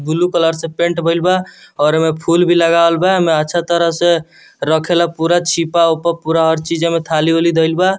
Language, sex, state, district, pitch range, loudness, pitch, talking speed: Bhojpuri, male, Bihar, Muzaffarpur, 160-170 Hz, -14 LUFS, 170 Hz, 195 wpm